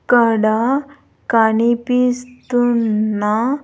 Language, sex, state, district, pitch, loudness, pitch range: Telugu, female, Andhra Pradesh, Sri Satya Sai, 240 Hz, -16 LUFS, 220-250 Hz